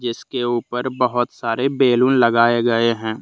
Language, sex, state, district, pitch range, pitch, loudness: Hindi, male, Jharkhand, Deoghar, 115-125 Hz, 120 Hz, -18 LUFS